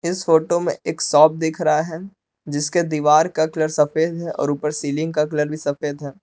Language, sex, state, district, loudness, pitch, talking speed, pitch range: Hindi, male, Jharkhand, Palamu, -20 LUFS, 155 Hz, 210 wpm, 150-160 Hz